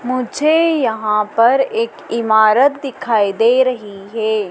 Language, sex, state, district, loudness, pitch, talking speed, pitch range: Hindi, female, Madhya Pradesh, Dhar, -15 LUFS, 235 Hz, 120 wpm, 215-270 Hz